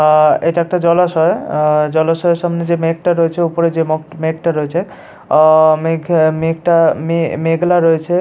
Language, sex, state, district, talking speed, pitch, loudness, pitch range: Bengali, male, West Bengal, Paschim Medinipur, 190 wpm, 165 Hz, -14 LUFS, 160-170 Hz